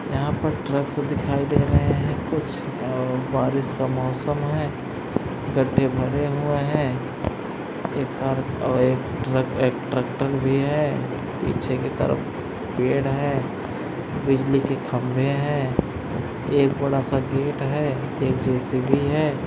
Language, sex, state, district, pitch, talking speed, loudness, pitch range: Hindi, male, Punjab, Fazilka, 135 Hz, 135 wpm, -24 LUFS, 130-145 Hz